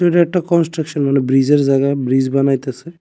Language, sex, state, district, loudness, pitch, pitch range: Bengali, male, Tripura, West Tripura, -15 LUFS, 140 Hz, 135-165 Hz